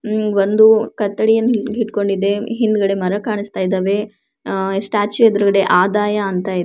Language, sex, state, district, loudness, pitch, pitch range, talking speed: Kannada, female, Karnataka, Mysore, -16 LUFS, 205 Hz, 195-220 Hz, 125 wpm